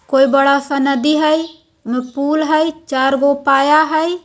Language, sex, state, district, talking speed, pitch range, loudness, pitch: Hindi, female, Bihar, Jahanabad, 140 wpm, 275-310 Hz, -14 LUFS, 280 Hz